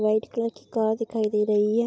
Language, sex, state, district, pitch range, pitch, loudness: Hindi, female, Bihar, Araria, 215-230 Hz, 220 Hz, -25 LUFS